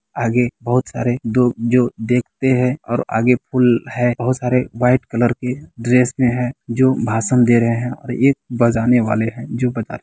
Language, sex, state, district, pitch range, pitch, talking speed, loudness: Hindi, male, Bihar, Kishanganj, 120-125 Hz, 125 Hz, 185 wpm, -17 LUFS